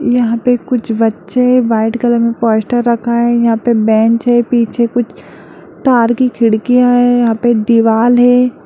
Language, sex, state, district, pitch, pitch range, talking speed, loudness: Hindi, female, Bihar, Darbhanga, 235 Hz, 230-245 Hz, 165 wpm, -12 LUFS